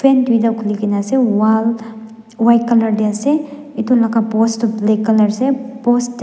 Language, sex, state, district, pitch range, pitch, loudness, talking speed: Nagamese, female, Nagaland, Dimapur, 220-245 Hz, 230 Hz, -15 LUFS, 165 wpm